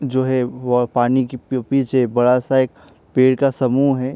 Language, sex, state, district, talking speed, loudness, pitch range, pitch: Hindi, male, Maharashtra, Chandrapur, 200 wpm, -18 LUFS, 125-130 Hz, 130 Hz